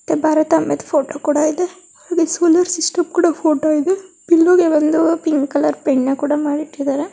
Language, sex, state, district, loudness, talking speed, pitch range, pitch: Kannada, male, Karnataka, Mysore, -16 LUFS, 145 wpm, 295-345 Hz, 315 Hz